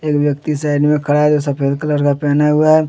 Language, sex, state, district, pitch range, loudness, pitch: Hindi, male, Jharkhand, Deoghar, 145-150 Hz, -15 LUFS, 150 Hz